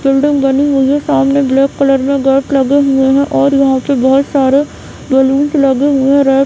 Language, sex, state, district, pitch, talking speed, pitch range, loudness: Hindi, female, Bihar, Madhepura, 275 Hz, 205 wpm, 270-280 Hz, -11 LUFS